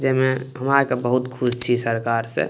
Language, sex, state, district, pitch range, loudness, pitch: Maithili, male, Bihar, Madhepura, 115-130 Hz, -21 LUFS, 125 Hz